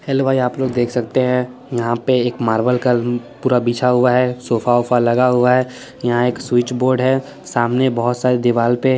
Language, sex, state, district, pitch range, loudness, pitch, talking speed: Hindi, male, Chandigarh, Chandigarh, 120-125 Hz, -17 LUFS, 125 Hz, 205 wpm